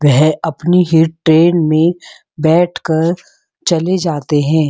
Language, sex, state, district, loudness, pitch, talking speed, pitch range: Hindi, female, Uttar Pradesh, Muzaffarnagar, -13 LUFS, 160 Hz, 130 wpm, 155-175 Hz